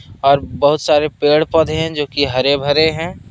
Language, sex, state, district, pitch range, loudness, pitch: Hindi, male, Jharkhand, Ranchi, 140-155 Hz, -15 LUFS, 145 Hz